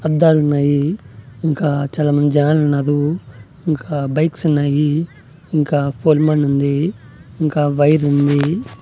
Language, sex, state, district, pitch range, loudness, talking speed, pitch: Telugu, male, Andhra Pradesh, Annamaya, 145-155 Hz, -16 LUFS, 80 wpm, 150 Hz